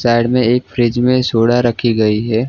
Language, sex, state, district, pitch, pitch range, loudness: Hindi, male, Jharkhand, Jamtara, 120 Hz, 115-125 Hz, -14 LUFS